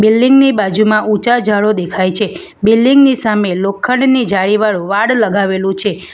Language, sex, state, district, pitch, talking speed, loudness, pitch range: Gujarati, female, Gujarat, Valsad, 210 Hz, 145 wpm, -12 LUFS, 195-240 Hz